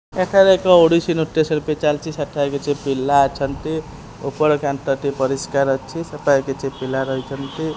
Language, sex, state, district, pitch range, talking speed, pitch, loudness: Odia, male, Odisha, Khordha, 135-155 Hz, 140 wpm, 145 Hz, -19 LUFS